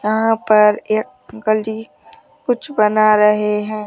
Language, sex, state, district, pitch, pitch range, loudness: Hindi, female, Rajasthan, Jaipur, 215 Hz, 210-220 Hz, -16 LUFS